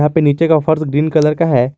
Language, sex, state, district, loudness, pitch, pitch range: Hindi, male, Jharkhand, Garhwa, -14 LUFS, 155 Hz, 150-160 Hz